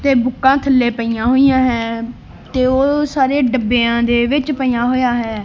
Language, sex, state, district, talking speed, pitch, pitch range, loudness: Punjabi, male, Punjab, Kapurthala, 165 wpm, 255 Hz, 235-270 Hz, -15 LUFS